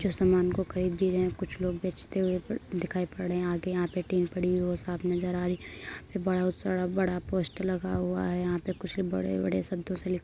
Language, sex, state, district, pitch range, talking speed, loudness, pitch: Hindi, female, Uttar Pradesh, Gorakhpur, 180-185 Hz, 260 wpm, -30 LUFS, 180 Hz